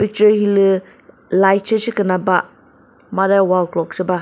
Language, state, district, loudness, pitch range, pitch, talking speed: Chakhesang, Nagaland, Dimapur, -16 LUFS, 185-205 Hz, 195 Hz, 140 wpm